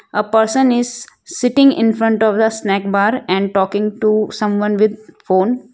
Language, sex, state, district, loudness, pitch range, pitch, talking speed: English, female, Gujarat, Valsad, -15 LUFS, 205-240 Hz, 215 Hz, 155 wpm